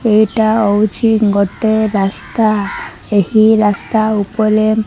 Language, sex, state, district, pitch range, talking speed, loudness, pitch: Odia, female, Odisha, Malkangiri, 205-220 Hz, 100 wpm, -13 LUFS, 215 Hz